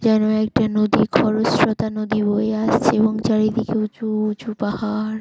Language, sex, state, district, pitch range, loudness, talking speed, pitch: Bengali, female, West Bengal, Jalpaiguri, 215-220 Hz, -19 LUFS, 125 wpm, 215 Hz